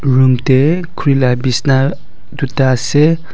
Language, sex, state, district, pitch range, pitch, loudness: Nagamese, male, Nagaland, Dimapur, 130-145 Hz, 135 Hz, -13 LUFS